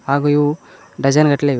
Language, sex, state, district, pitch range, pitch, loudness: Kannada, male, Karnataka, Koppal, 140-145 Hz, 145 Hz, -16 LUFS